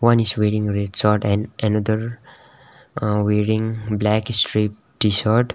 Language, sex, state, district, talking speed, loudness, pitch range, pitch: English, male, Sikkim, Gangtok, 130 wpm, -19 LUFS, 105-115 Hz, 110 Hz